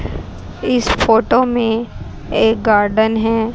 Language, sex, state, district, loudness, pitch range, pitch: Hindi, female, Haryana, Jhajjar, -15 LUFS, 205-230 Hz, 225 Hz